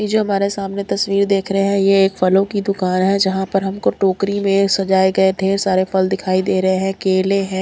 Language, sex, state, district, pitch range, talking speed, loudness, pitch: Hindi, female, Punjab, Kapurthala, 190-200 Hz, 230 wpm, -17 LUFS, 195 Hz